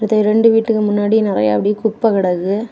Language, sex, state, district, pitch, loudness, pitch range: Tamil, female, Tamil Nadu, Kanyakumari, 215 Hz, -15 LUFS, 200-220 Hz